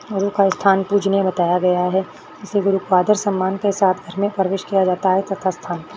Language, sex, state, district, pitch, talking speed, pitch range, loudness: Hindi, female, Rajasthan, Churu, 195 Hz, 230 wpm, 185-200 Hz, -18 LUFS